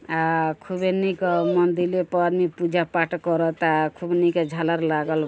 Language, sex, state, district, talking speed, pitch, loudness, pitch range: Bhojpuri, female, Uttar Pradesh, Gorakhpur, 150 wpm, 170 Hz, -22 LUFS, 160-175 Hz